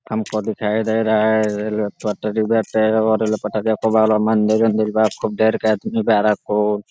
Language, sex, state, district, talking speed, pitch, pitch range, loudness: Hindi, male, Uttar Pradesh, Deoria, 175 wpm, 110 Hz, 105-110 Hz, -18 LUFS